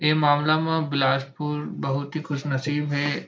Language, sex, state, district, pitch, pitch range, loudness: Chhattisgarhi, male, Chhattisgarh, Bilaspur, 145 Hz, 140-155 Hz, -24 LUFS